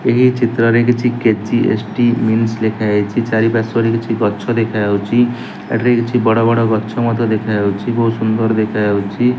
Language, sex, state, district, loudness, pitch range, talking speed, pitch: Odia, male, Odisha, Nuapada, -15 LUFS, 110-120 Hz, 130 wpm, 115 Hz